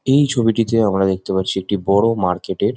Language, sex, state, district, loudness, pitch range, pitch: Bengali, male, West Bengal, Jhargram, -17 LUFS, 95-115 Hz, 100 Hz